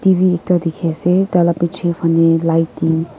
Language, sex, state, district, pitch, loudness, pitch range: Nagamese, female, Nagaland, Kohima, 170 Hz, -15 LUFS, 165-180 Hz